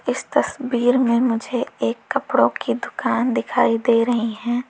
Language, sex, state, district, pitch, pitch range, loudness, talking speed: Hindi, female, Uttar Pradesh, Lalitpur, 245 Hz, 235-250 Hz, -20 LUFS, 155 wpm